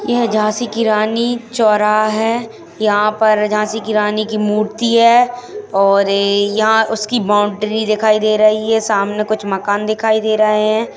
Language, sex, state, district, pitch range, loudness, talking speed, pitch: Hindi, female, Uttarakhand, Tehri Garhwal, 210-225 Hz, -14 LUFS, 165 wpm, 215 Hz